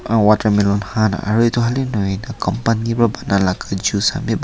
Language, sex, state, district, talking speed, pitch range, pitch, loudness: Nagamese, male, Nagaland, Kohima, 200 wpm, 100-115 Hz, 110 Hz, -17 LUFS